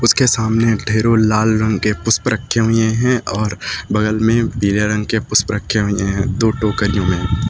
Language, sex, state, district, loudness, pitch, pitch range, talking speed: Hindi, male, Uttar Pradesh, Lucknow, -16 LUFS, 110 Hz, 105-115 Hz, 185 wpm